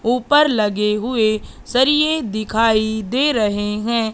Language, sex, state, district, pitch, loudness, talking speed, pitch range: Hindi, female, Madhya Pradesh, Katni, 225 Hz, -17 LUFS, 115 wpm, 215-255 Hz